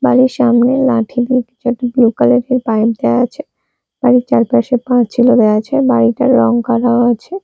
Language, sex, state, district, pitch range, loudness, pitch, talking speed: Bengali, female, Odisha, Malkangiri, 225-250 Hz, -12 LUFS, 245 Hz, 175 wpm